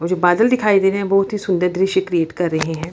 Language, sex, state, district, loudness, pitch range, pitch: Hindi, female, Bihar, Lakhisarai, -17 LUFS, 175-195 Hz, 185 Hz